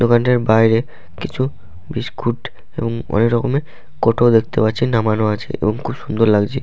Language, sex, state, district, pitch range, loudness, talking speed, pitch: Bengali, male, West Bengal, Paschim Medinipur, 110-125 Hz, -17 LUFS, 145 wpm, 115 Hz